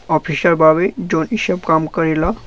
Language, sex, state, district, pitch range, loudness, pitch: Bhojpuri, male, Uttar Pradesh, Gorakhpur, 155-175 Hz, -16 LUFS, 160 Hz